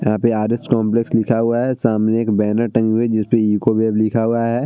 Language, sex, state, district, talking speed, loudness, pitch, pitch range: Hindi, male, Bihar, Vaishali, 255 wpm, -17 LUFS, 115 Hz, 110-115 Hz